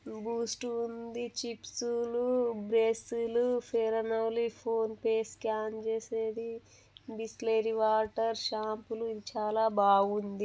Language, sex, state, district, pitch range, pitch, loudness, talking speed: Telugu, female, Telangana, Nalgonda, 220-235 Hz, 225 Hz, -32 LUFS, 90 wpm